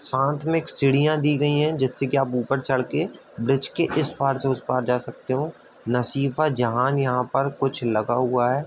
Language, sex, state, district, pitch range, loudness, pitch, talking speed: Hindi, male, Uttar Pradesh, Budaun, 125-140 Hz, -23 LUFS, 135 Hz, 230 wpm